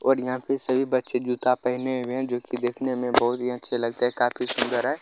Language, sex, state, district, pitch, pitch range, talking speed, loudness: Maithili, male, Bihar, Darbhanga, 125 Hz, 125-130 Hz, 250 wpm, -24 LUFS